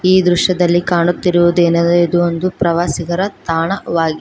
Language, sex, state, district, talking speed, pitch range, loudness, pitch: Kannada, female, Karnataka, Koppal, 100 wpm, 170-180 Hz, -14 LUFS, 175 Hz